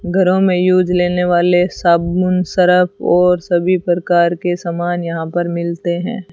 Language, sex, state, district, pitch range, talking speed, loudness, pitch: Hindi, female, Rajasthan, Bikaner, 175-180 Hz, 150 wpm, -15 LUFS, 175 Hz